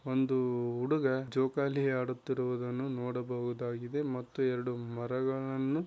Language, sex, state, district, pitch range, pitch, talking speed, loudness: Kannada, male, Karnataka, Raichur, 125-135 Hz, 130 Hz, 90 wpm, -34 LUFS